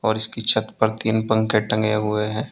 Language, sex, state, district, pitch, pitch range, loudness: Hindi, male, Uttar Pradesh, Saharanpur, 110 Hz, 105-110 Hz, -21 LUFS